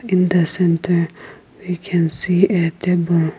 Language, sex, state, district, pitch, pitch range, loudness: English, female, Nagaland, Kohima, 175 Hz, 170-185 Hz, -18 LUFS